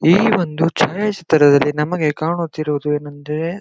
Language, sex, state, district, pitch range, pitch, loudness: Kannada, male, Karnataka, Gulbarga, 150-175 Hz, 160 Hz, -17 LUFS